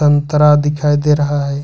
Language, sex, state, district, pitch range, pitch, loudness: Hindi, male, Jharkhand, Ranchi, 145-150 Hz, 145 Hz, -13 LUFS